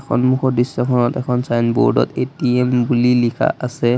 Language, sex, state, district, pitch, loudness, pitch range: Assamese, male, Assam, Sonitpur, 125 Hz, -17 LUFS, 120-125 Hz